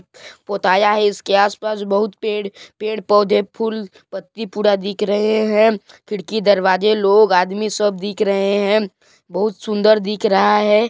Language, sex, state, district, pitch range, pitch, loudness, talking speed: Hindi, male, Chhattisgarh, Balrampur, 200-215 Hz, 210 Hz, -17 LUFS, 145 wpm